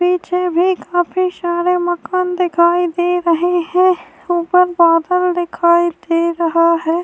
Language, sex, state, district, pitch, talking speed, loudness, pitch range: Urdu, female, Bihar, Saharsa, 350 Hz, 130 wpm, -15 LUFS, 340-360 Hz